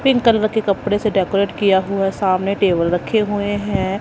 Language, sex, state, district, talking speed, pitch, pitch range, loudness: Hindi, female, Punjab, Kapurthala, 195 wpm, 200 Hz, 195-210 Hz, -18 LUFS